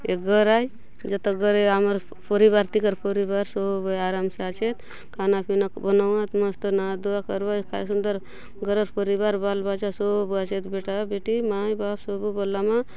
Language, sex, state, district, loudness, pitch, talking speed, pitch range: Halbi, female, Chhattisgarh, Bastar, -24 LUFS, 200 Hz, 170 wpm, 195-205 Hz